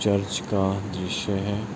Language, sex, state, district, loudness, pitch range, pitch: Hindi, male, Bihar, Araria, -26 LUFS, 95-100 Hz, 100 Hz